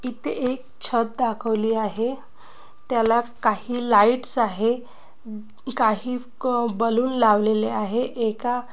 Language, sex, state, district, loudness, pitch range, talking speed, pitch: Marathi, female, Maharashtra, Nagpur, -22 LUFS, 220-245 Hz, 105 wpm, 235 Hz